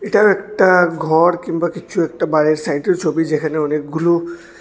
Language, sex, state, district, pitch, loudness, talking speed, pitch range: Bengali, male, Tripura, West Tripura, 170 Hz, -16 LUFS, 145 wpm, 155-175 Hz